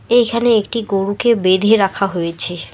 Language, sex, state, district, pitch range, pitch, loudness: Bengali, female, West Bengal, Alipurduar, 185-230 Hz, 200 Hz, -15 LUFS